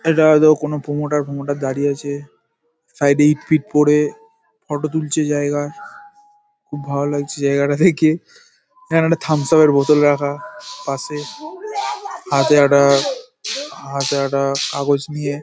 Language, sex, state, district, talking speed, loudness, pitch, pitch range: Bengali, male, West Bengal, Paschim Medinipur, 135 wpm, -17 LUFS, 150 Hz, 140-160 Hz